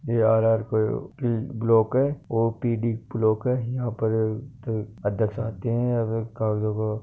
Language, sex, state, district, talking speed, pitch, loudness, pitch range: Marwari, male, Rajasthan, Nagaur, 120 wpm, 115 Hz, -25 LUFS, 110-120 Hz